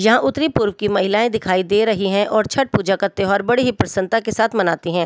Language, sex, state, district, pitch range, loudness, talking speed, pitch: Hindi, female, Delhi, New Delhi, 195-225 Hz, -18 LUFS, 250 wpm, 205 Hz